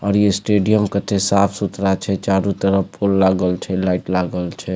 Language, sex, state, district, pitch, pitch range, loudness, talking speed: Maithili, male, Bihar, Supaul, 95 Hz, 95-100 Hz, -18 LUFS, 175 wpm